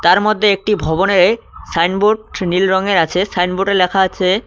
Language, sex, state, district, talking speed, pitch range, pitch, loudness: Bengali, male, West Bengal, Cooch Behar, 160 wpm, 180-205 Hz, 190 Hz, -15 LUFS